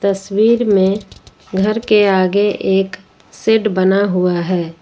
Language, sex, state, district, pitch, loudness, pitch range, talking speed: Hindi, female, Jharkhand, Ranchi, 195 Hz, -15 LUFS, 185-210 Hz, 125 wpm